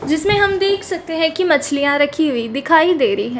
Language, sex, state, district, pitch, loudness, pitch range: Hindi, female, Chhattisgarh, Rajnandgaon, 320 Hz, -16 LUFS, 285-390 Hz